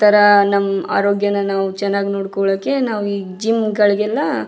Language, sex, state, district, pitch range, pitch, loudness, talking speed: Kannada, female, Karnataka, Raichur, 195-210 Hz, 200 Hz, -17 LUFS, 135 wpm